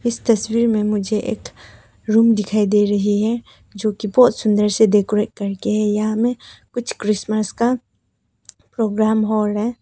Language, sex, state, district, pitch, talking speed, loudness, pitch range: Hindi, female, Arunachal Pradesh, Papum Pare, 215 Hz, 160 wpm, -18 LUFS, 210-230 Hz